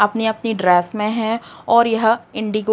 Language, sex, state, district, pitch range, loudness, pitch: Hindi, female, Uttar Pradesh, Varanasi, 210-225 Hz, -18 LUFS, 220 Hz